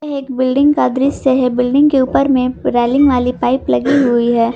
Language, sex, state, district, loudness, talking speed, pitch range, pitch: Hindi, female, Jharkhand, Garhwa, -13 LUFS, 210 wpm, 250-275 Hz, 260 Hz